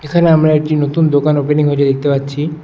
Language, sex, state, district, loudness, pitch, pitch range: Bengali, male, West Bengal, Alipurduar, -13 LUFS, 150 Hz, 145-155 Hz